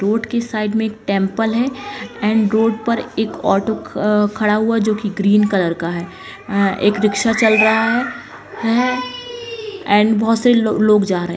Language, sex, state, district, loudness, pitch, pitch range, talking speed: Kumaoni, female, Uttarakhand, Uttarkashi, -17 LUFS, 220 Hz, 205-230 Hz, 175 wpm